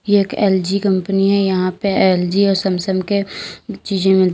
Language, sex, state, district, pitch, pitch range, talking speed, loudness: Hindi, female, Uttar Pradesh, Lalitpur, 195 Hz, 185-200 Hz, 165 wpm, -16 LUFS